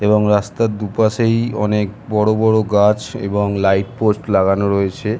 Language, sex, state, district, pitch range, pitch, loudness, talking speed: Bengali, male, West Bengal, Jhargram, 100-110 Hz, 105 Hz, -16 LUFS, 140 wpm